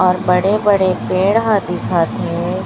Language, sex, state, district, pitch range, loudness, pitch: Hindi, male, Chhattisgarh, Raipur, 180-200 Hz, -15 LUFS, 185 Hz